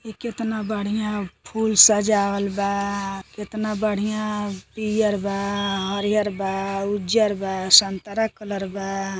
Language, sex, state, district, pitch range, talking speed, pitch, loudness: Bhojpuri, female, Uttar Pradesh, Deoria, 195-215 Hz, 110 wpm, 205 Hz, -22 LUFS